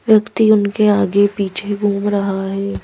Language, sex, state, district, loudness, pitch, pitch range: Hindi, female, Madhya Pradesh, Bhopal, -16 LUFS, 205 Hz, 195-205 Hz